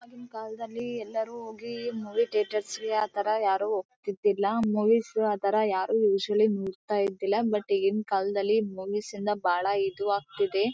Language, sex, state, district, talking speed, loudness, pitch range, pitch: Kannada, female, Karnataka, Bellary, 115 wpm, -28 LUFS, 200-225 Hz, 210 Hz